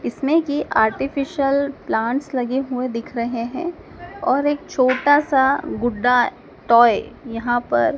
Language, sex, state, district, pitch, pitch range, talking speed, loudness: Hindi, male, Madhya Pradesh, Dhar, 260 Hz, 240-285 Hz, 130 wpm, -19 LUFS